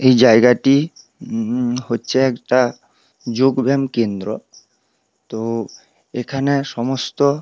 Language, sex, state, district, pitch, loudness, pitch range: Bengali, male, West Bengal, Paschim Medinipur, 130 Hz, -18 LUFS, 120-135 Hz